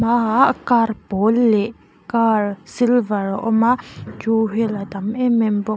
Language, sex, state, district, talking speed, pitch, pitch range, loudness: Mizo, female, Mizoram, Aizawl, 155 wpm, 225 Hz, 210-235 Hz, -18 LUFS